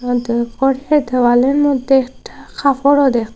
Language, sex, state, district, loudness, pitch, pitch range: Bengali, female, Assam, Hailakandi, -14 LUFS, 260 Hz, 245-280 Hz